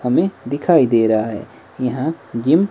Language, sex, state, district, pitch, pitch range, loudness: Hindi, male, Himachal Pradesh, Shimla, 125 Hz, 110-155 Hz, -18 LUFS